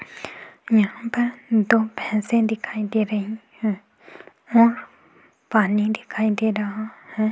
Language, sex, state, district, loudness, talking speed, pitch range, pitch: Hindi, female, Goa, North and South Goa, -22 LUFS, 115 wpm, 215-225 Hz, 220 Hz